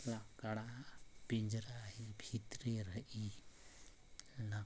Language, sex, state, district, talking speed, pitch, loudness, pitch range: Sadri, male, Chhattisgarh, Jashpur, 75 wpm, 110 Hz, -47 LUFS, 105-115 Hz